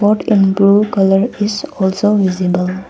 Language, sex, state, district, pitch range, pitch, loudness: English, female, Arunachal Pradesh, Papum Pare, 190-210 Hz, 200 Hz, -14 LUFS